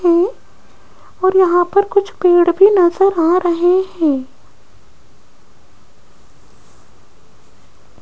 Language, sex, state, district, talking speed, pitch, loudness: Hindi, female, Rajasthan, Jaipur, 80 wpm, 345 Hz, -14 LUFS